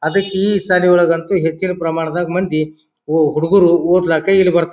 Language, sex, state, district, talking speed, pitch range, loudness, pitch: Kannada, male, Karnataka, Bijapur, 140 wpm, 160-185 Hz, -15 LUFS, 175 Hz